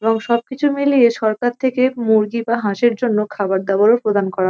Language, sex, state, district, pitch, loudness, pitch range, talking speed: Bengali, female, West Bengal, North 24 Parganas, 230 Hz, -17 LUFS, 210-245 Hz, 175 wpm